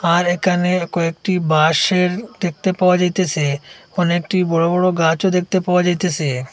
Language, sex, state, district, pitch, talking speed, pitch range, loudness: Bengali, male, Assam, Hailakandi, 180 Hz, 130 wpm, 165-185 Hz, -17 LUFS